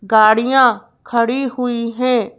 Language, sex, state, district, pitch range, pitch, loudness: Hindi, female, Madhya Pradesh, Bhopal, 230-250 Hz, 240 Hz, -15 LUFS